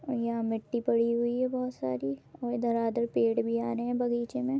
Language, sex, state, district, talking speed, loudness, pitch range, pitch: Hindi, female, Maharashtra, Aurangabad, 235 wpm, -30 LUFS, 160-245 Hz, 235 Hz